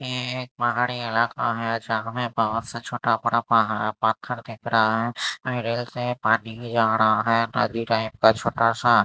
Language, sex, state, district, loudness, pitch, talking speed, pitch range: Hindi, male, Maharashtra, Mumbai Suburban, -23 LUFS, 115 Hz, 175 wpm, 115-120 Hz